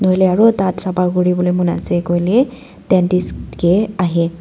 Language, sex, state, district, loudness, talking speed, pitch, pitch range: Nagamese, female, Nagaland, Dimapur, -15 LUFS, 165 wpm, 180 Hz, 180-190 Hz